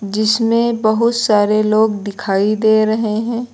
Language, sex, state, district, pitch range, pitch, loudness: Hindi, female, Uttar Pradesh, Lucknow, 210-230 Hz, 215 Hz, -15 LUFS